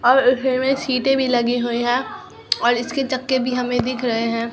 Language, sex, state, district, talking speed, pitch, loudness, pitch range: Hindi, female, Bihar, Katihar, 200 wpm, 250 Hz, -19 LUFS, 240-260 Hz